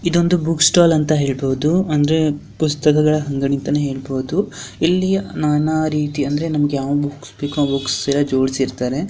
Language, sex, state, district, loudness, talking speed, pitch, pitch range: Kannada, female, Karnataka, Dharwad, -18 LUFS, 145 wpm, 150 Hz, 140-155 Hz